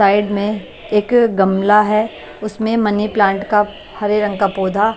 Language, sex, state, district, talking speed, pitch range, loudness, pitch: Hindi, female, Maharashtra, Washim, 170 wpm, 200-215 Hz, -16 LUFS, 210 Hz